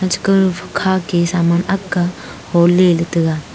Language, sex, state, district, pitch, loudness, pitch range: Wancho, female, Arunachal Pradesh, Longding, 175 Hz, -15 LUFS, 170-185 Hz